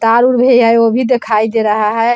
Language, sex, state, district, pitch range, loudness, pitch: Hindi, female, Bihar, Vaishali, 220-245 Hz, -11 LUFS, 230 Hz